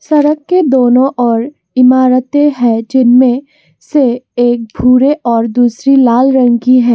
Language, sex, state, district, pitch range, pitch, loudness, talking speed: Hindi, female, Assam, Kamrup Metropolitan, 240-275 Hz, 255 Hz, -10 LUFS, 140 wpm